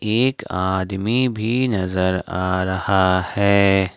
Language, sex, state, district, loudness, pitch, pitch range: Hindi, male, Jharkhand, Ranchi, -19 LUFS, 95 Hz, 95-110 Hz